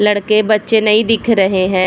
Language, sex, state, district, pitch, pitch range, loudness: Hindi, female, Bihar, Vaishali, 215 Hz, 195-220 Hz, -13 LUFS